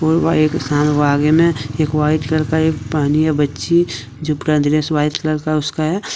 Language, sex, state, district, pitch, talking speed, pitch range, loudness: Hindi, male, Jharkhand, Deoghar, 155 Hz, 145 wpm, 150-155 Hz, -16 LUFS